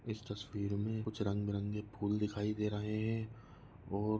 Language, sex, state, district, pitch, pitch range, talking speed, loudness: Hindi, male, Maharashtra, Nagpur, 105 Hz, 100-110 Hz, 155 wpm, -39 LUFS